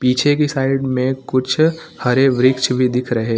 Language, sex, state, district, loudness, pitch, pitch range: Hindi, male, Uttar Pradesh, Lucknow, -17 LUFS, 130 Hz, 125-135 Hz